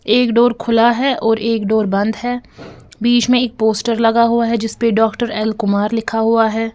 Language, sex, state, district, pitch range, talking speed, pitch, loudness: Hindi, female, Bihar, Patna, 220-235 Hz, 195 wpm, 225 Hz, -15 LUFS